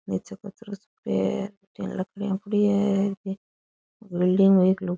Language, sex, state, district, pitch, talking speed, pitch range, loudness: Rajasthani, female, Rajasthan, Churu, 195 Hz, 155 wpm, 185-200 Hz, -24 LUFS